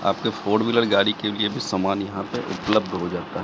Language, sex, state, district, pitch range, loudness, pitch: Hindi, male, Bihar, Katihar, 95-105 Hz, -23 LUFS, 105 Hz